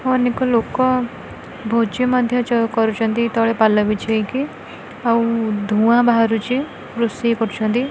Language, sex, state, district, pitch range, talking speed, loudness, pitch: Odia, female, Odisha, Khordha, 225-245 Hz, 105 wpm, -18 LUFS, 230 Hz